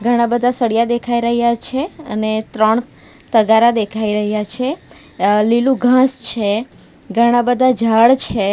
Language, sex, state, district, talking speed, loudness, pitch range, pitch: Gujarati, female, Gujarat, Valsad, 140 wpm, -15 LUFS, 220-245 Hz, 235 Hz